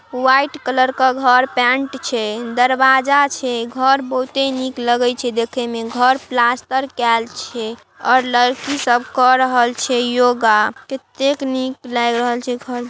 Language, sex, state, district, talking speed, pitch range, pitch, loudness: Maithili, female, Bihar, Darbhanga, 150 wpm, 240-265 Hz, 250 Hz, -16 LUFS